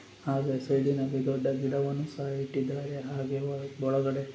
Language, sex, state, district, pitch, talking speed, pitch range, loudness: Kannada, male, Karnataka, Dakshina Kannada, 135 Hz, 110 wpm, 135-140 Hz, -31 LUFS